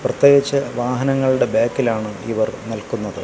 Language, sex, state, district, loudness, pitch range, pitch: Malayalam, male, Kerala, Kasaragod, -19 LUFS, 115-135 Hz, 125 Hz